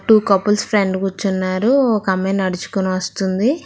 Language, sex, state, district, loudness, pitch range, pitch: Telugu, female, Telangana, Hyderabad, -17 LUFS, 190-215 Hz, 195 Hz